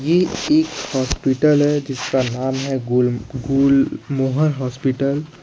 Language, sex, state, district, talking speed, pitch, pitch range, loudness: Hindi, male, Jharkhand, Ranchi, 120 wpm, 135 Hz, 130-145 Hz, -19 LUFS